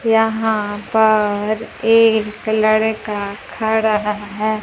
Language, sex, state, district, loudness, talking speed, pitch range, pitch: Hindi, female, Bihar, Kaimur, -17 LUFS, 80 wpm, 210-220 Hz, 215 Hz